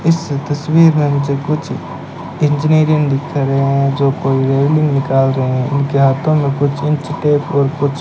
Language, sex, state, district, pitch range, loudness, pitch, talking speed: Hindi, male, Rajasthan, Bikaner, 140-150 Hz, -14 LUFS, 140 Hz, 180 wpm